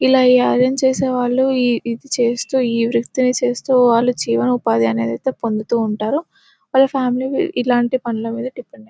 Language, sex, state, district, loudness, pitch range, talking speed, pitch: Telugu, male, Telangana, Nalgonda, -17 LUFS, 230-260 Hz, 170 wpm, 245 Hz